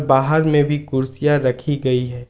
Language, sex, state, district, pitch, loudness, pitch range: Hindi, male, Jharkhand, Ranchi, 135 Hz, -18 LUFS, 130-145 Hz